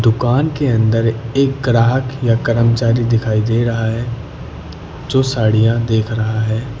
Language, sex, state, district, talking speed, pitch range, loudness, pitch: Hindi, male, Uttar Pradesh, Lucknow, 140 wpm, 115-125 Hz, -16 LUFS, 115 Hz